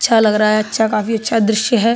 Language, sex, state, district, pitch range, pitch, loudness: Hindi, male, Uttar Pradesh, Budaun, 215-230 Hz, 220 Hz, -15 LUFS